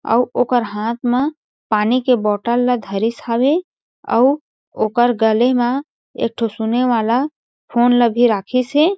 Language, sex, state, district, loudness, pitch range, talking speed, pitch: Chhattisgarhi, female, Chhattisgarh, Jashpur, -17 LUFS, 225-255 Hz, 145 wpm, 240 Hz